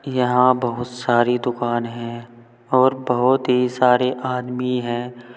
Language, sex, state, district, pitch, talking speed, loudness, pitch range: Hindi, male, Uttar Pradesh, Saharanpur, 125 Hz, 125 wpm, -20 LUFS, 120-125 Hz